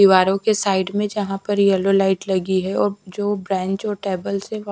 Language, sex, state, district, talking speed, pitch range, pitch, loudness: Hindi, female, Bihar, Patna, 215 wpm, 190-205 Hz, 195 Hz, -20 LUFS